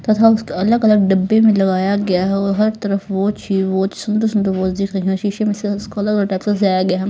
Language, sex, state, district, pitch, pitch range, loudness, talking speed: Hindi, female, Haryana, Rohtak, 200 Hz, 190-210 Hz, -16 LUFS, 150 wpm